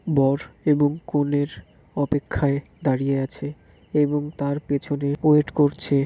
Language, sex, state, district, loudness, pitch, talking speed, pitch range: Bengali, male, West Bengal, Kolkata, -23 LUFS, 145 Hz, 120 wpm, 140-145 Hz